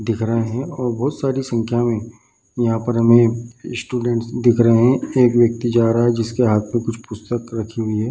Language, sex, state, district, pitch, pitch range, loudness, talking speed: Hindi, male, Bihar, Bhagalpur, 120 Hz, 115-120 Hz, -18 LUFS, 220 wpm